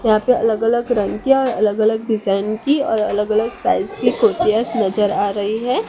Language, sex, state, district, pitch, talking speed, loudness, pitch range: Hindi, male, Gujarat, Gandhinagar, 220 Hz, 215 wpm, -17 LUFS, 210-240 Hz